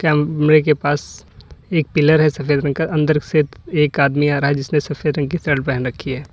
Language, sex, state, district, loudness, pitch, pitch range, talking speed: Hindi, male, Uttar Pradesh, Lalitpur, -17 LUFS, 150 Hz, 140-155 Hz, 225 wpm